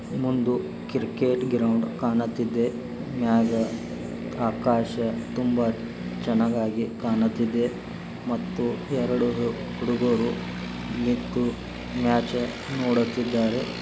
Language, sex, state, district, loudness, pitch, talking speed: Kannada, male, Karnataka, Belgaum, -26 LUFS, 115 Hz, 60 wpm